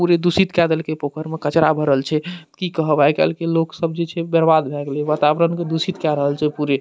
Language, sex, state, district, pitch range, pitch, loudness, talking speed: Maithili, male, Bihar, Madhepura, 150-170 Hz, 160 Hz, -19 LUFS, 235 wpm